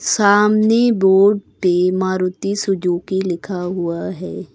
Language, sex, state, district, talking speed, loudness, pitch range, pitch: Hindi, female, Uttar Pradesh, Lucknow, 105 wpm, -17 LUFS, 180-205 Hz, 190 Hz